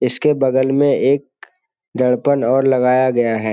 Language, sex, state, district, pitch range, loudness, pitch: Hindi, male, Bihar, Jamui, 125-140 Hz, -16 LUFS, 130 Hz